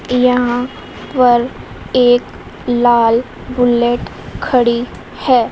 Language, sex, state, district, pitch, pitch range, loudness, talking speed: Hindi, female, Madhya Pradesh, Dhar, 245 Hz, 240-250 Hz, -14 LUFS, 75 wpm